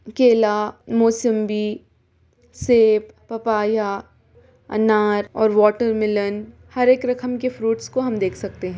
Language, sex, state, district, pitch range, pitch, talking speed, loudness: Hindi, female, Bihar, Gopalganj, 210-235 Hz, 220 Hz, 125 wpm, -19 LUFS